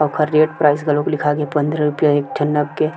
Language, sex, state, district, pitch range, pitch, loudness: Chhattisgarhi, male, Chhattisgarh, Sukma, 150-155 Hz, 150 Hz, -17 LUFS